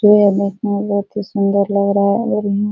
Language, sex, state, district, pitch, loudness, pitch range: Hindi, female, Bihar, Supaul, 200 Hz, -16 LUFS, 200-210 Hz